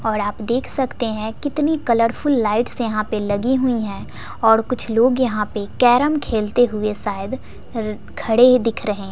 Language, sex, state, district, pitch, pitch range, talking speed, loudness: Hindi, female, Bihar, West Champaran, 230 Hz, 215-255 Hz, 165 wpm, -19 LUFS